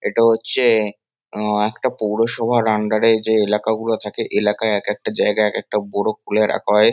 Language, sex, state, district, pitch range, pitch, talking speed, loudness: Bengali, male, West Bengal, Kolkata, 105-110 Hz, 110 Hz, 155 wpm, -18 LUFS